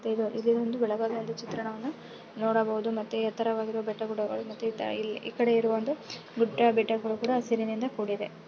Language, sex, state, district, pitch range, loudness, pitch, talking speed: Kannada, female, Karnataka, Belgaum, 220-230 Hz, -30 LUFS, 225 Hz, 155 wpm